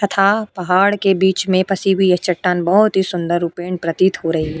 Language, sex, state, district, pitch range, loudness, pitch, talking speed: Hindi, female, Uttar Pradesh, Etah, 175-195 Hz, -16 LUFS, 185 Hz, 210 wpm